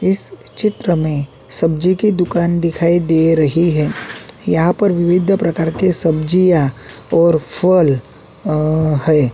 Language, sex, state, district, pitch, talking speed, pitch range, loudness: Hindi, male, Uttarakhand, Tehri Garhwal, 165 Hz, 120 wpm, 155-180 Hz, -15 LUFS